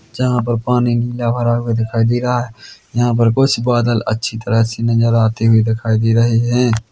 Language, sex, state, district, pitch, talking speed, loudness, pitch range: Hindi, male, Chhattisgarh, Korba, 115 Hz, 200 wpm, -15 LUFS, 115-120 Hz